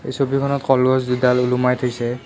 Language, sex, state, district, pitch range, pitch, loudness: Assamese, male, Assam, Kamrup Metropolitan, 125-135 Hz, 125 Hz, -18 LUFS